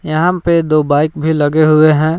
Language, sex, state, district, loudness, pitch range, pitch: Hindi, male, Jharkhand, Palamu, -12 LUFS, 155-160 Hz, 155 Hz